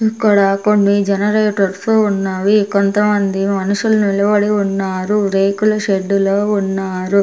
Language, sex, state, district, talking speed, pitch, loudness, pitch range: Telugu, female, Andhra Pradesh, Sri Satya Sai, 90 wpm, 200 Hz, -15 LUFS, 195-210 Hz